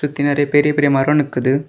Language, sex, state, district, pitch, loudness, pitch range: Tamil, male, Tamil Nadu, Kanyakumari, 145 Hz, -16 LUFS, 135-145 Hz